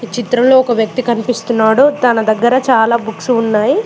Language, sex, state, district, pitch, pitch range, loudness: Telugu, female, Telangana, Mahabubabad, 235 Hz, 225-255 Hz, -12 LUFS